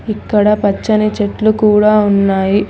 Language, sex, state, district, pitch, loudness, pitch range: Telugu, female, Telangana, Hyderabad, 210 Hz, -12 LUFS, 200-215 Hz